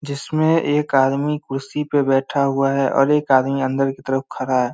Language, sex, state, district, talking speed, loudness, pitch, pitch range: Hindi, male, Bihar, Samastipur, 200 wpm, -19 LUFS, 135 Hz, 135-150 Hz